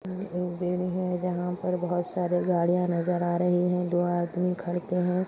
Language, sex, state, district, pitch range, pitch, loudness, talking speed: Hindi, female, Chhattisgarh, Bastar, 175-180 Hz, 180 Hz, -28 LUFS, 180 wpm